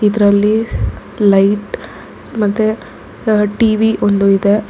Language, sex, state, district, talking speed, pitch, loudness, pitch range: Kannada, female, Karnataka, Bangalore, 75 wpm, 210 Hz, -14 LUFS, 200-220 Hz